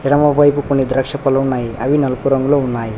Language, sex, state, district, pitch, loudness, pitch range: Telugu, male, Telangana, Hyderabad, 135 Hz, -15 LUFS, 130-145 Hz